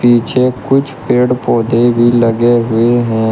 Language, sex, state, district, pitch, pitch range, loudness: Hindi, male, Uttar Pradesh, Shamli, 120 Hz, 115-125 Hz, -12 LUFS